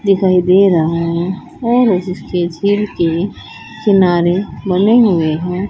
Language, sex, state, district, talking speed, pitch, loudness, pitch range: Hindi, female, Haryana, Charkhi Dadri, 115 wpm, 185 Hz, -14 LUFS, 175-200 Hz